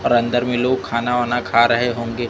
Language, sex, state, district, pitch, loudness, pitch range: Hindi, male, Chhattisgarh, Raipur, 120 Hz, -18 LUFS, 120-125 Hz